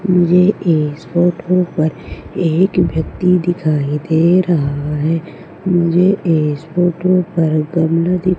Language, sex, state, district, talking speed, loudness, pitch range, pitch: Hindi, female, Madhya Pradesh, Umaria, 115 wpm, -15 LUFS, 160-180 Hz, 170 Hz